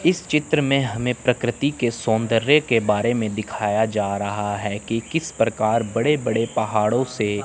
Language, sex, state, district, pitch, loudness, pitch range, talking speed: Hindi, male, Chandigarh, Chandigarh, 115 Hz, -21 LUFS, 110-130 Hz, 170 wpm